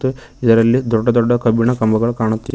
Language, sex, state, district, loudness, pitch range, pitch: Kannada, male, Karnataka, Koppal, -15 LUFS, 115-120 Hz, 115 Hz